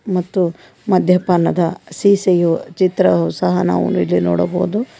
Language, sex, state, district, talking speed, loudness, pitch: Kannada, female, Karnataka, Koppal, 95 wpm, -16 LUFS, 175 Hz